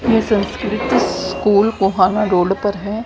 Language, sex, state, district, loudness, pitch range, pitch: Hindi, female, Haryana, Rohtak, -16 LUFS, 195-215 Hz, 205 Hz